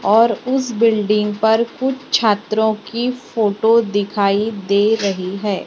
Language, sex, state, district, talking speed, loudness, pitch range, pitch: Hindi, female, Maharashtra, Gondia, 125 wpm, -17 LUFS, 205-230 Hz, 220 Hz